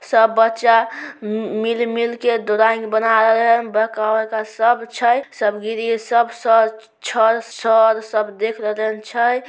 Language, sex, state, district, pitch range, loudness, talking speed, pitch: Maithili, male, Bihar, Samastipur, 220-230 Hz, -17 LUFS, 125 wpm, 225 Hz